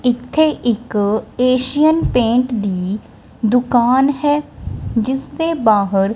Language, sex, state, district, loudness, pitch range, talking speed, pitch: Punjabi, female, Punjab, Kapurthala, -16 LUFS, 220-275 Hz, 95 wpm, 245 Hz